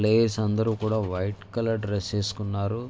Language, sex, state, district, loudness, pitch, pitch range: Telugu, male, Andhra Pradesh, Visakhapatnam, -27 LUFS, 105 Hz, 100-110 Hz